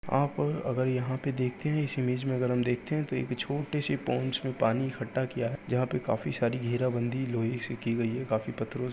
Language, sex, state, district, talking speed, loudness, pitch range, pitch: Hindi, male, Uttar Pradesh, Gorakhpur, 250 wpm, -31 LUFS, 120-135 Hz, 125 Hz